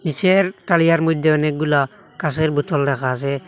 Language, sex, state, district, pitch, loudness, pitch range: Bengali, male, Assam, Hailakandi, 155 Hz, -18 LUFS, 140-165 Hz